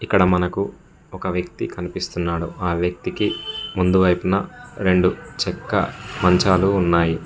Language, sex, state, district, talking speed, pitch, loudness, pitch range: Telugu, male, Telangana, Mahabubabad, 100 wpm, 90 Hz, -21 LUFS, 90-95 Hz